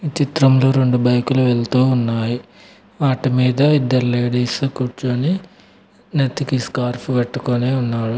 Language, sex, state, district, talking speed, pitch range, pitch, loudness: Telugu, male, Telangana, Mahabubabad, 110 wpm, 125-135 Hz, 130 Hz, -18 LUFS